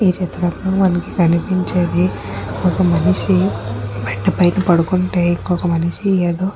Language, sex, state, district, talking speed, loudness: Telugu, female, Andhra Pradesh, Chittoor, 120 wpm, -17 LUFS